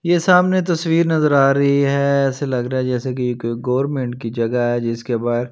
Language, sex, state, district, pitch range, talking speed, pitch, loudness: Hindi, male, Delhi, New Delhi, 120-145 Hz, 230 wpm, 130 Hz, -18 LUFS